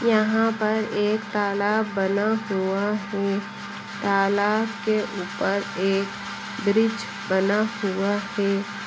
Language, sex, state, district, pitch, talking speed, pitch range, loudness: Hindi, female, Bihar, Samastipur, 205 Hz, 100 wpm, 195-215 Hz, -24 LUFS